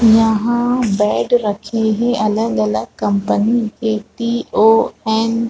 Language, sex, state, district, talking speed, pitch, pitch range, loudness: Hindi, female, Chhattisgarh, Balrampur, 110 wpm, 220 Hz, 210-235 Hz, -16 LUFS